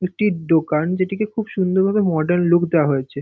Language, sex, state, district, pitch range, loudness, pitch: Bengali, male, West Bengal, North 24 Parganas, 160-195 Hz, -19 LUFS, 180 Hz